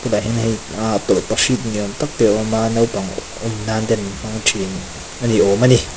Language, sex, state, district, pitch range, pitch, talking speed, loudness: Mizo, male, Mizoram, Aizawl, 105-115 Hz, 110 Hz, 220 wpm, -18 LUFS